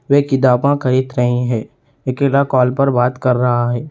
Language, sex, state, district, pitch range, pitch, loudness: Hindi, male, Uttar Pradesh, Etah, 125-140 Hz, 130 Hz, -15 LUFS